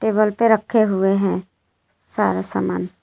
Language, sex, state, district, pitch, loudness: Hindi, female, Jharkhand, Garhwa, 185 Hz, -19 LUFS